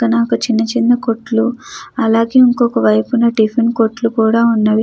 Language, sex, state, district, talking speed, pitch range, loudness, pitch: Telugu, female, Andhra Pradesh, Chittoor, 125 wpm, 220-235 Hz, -14 LUFS, 230 Hz